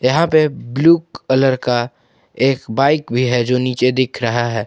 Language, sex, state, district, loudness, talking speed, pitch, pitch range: Hindi, male, Jharkhand, Palamu, -16 LUFS, 180 wpm, 125 Hz, 120-135 Hz